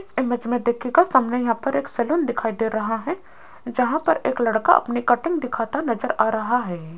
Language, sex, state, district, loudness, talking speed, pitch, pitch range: Hindi, female, Rajasthan, Jaipur, -22 LUFS, 195 wpm, 245 Hz, 230-280 Hz